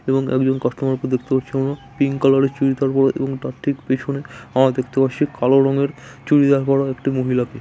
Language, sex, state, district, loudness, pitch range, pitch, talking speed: Bengali, male, West Bengal, Malda, -19 LUFS, 130-140 Hz, 135 Hz, 150 wpm